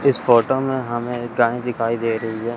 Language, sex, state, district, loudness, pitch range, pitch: Hindi, male, Chandigarh, Chandigarh, -20 LUFS, 115-125 Hz, 120 Hz